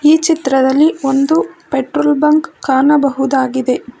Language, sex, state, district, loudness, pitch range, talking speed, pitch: Kannada, female, Karnataka, Bangalore, -13 LUFS, 265-310 Hz, 90 wpm, 280 Hz